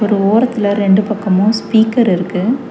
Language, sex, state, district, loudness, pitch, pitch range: Tamil, female, Tamil Nadu, Chennai, -13 LUFS, 210 Hz, 200-225 Hz